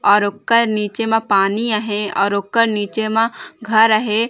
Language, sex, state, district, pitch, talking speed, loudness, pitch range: Chhattisgarhi, female, Chhattisgarh, Raigarh, 215 Hz, 195 wpm, -17 LUFS, 205-225 Hz